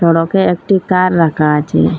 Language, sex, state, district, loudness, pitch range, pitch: Bengali, female, Assam, Hailakandi, -13 LUFS, 150-185 Hz, 165 Hz